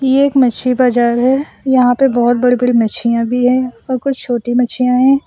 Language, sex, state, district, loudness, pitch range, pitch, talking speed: Hindi, male, Assam, Sonitpur, -13 LUFS, 240-260 Hz, 250 Hz, 205 wpm